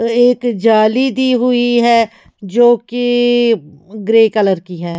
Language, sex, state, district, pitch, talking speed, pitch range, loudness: Hindi, female, Maharashtra, Mumbai Suburban, 230 Hz, 130 wpm, 215-245 Hz, -13 LUFS